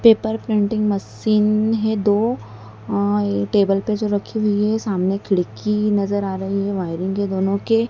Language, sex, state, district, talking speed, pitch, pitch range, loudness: Hindi, female, Madhya Pradesh, Dhar, 165 wpm, 205 Hz, 190-215 Hz, -20 LUFS